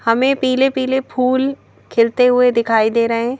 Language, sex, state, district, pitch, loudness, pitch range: Hindi, female, Madhya Pradesh, Bhopal, 250 Hz, -16 LUFS, 230-260 Hz